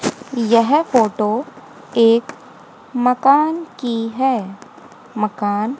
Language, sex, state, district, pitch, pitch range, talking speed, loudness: Hindi, female, Haryana, Rohtak, 240 Hz, 220-270 Hz, 75 wpm, -17 LUFS